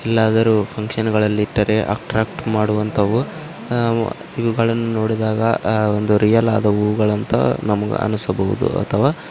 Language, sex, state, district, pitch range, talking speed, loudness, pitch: Kannada, male, Karnataka, Raichur, 105-115 Hz, 115 wpm, -18 LUFS, 110 Hz